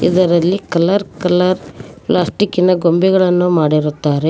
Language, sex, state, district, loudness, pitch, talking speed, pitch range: Kannada, female, Karnataka, Koppal, -14 LUFS, 180 Hz, 100 wpm, 155-185 Hz